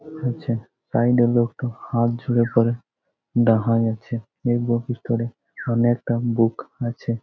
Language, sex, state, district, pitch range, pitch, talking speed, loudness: Bengali, male, West Bengal, Jhargram, 115-120 Hz, 120 Hz, 140 wpm, -22 LUFS